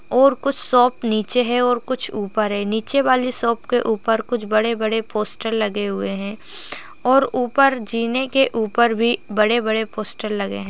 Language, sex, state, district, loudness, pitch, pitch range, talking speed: Hindi, female, Bihar, Purnia, -18 LUFS, 230 Hz, 215-250 Hz, 170 wpm